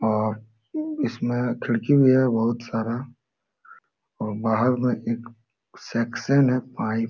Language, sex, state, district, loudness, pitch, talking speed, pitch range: Hindi, male, Jharkhand, Sahebganj, -24 LUFS, 120 Hz, 120 wpm, 110-125 Hz